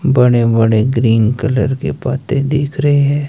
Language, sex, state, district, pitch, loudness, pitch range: Hindi, male, Himachal Pradesh, Shimla, 130 Hz, -14 LUFS, 115-140 Hz